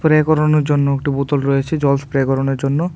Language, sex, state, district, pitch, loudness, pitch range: Bengali, male, Tripura, West Tripura, 140 Hz, -16 LUFS, 140-155 Hz